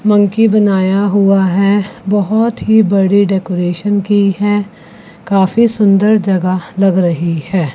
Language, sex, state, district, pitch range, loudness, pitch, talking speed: Hindi, female, Chandigarh, Chandigarh, 190-205 Hz, -12 LUFS, 200 Hz, 125 wpm